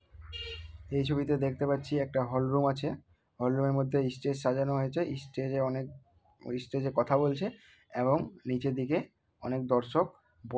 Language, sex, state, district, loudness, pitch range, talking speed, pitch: Bengali, male, West Bengal, Malda, -32 LUFS, 125-140 Hz, 130 wpm, 135 Hz